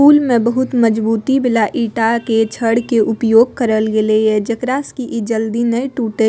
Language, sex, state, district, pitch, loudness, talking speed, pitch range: Maithili, female, Bihar, Purnia, 230 Hz, -15 LUFS, 190 wpm, 225-245 Hz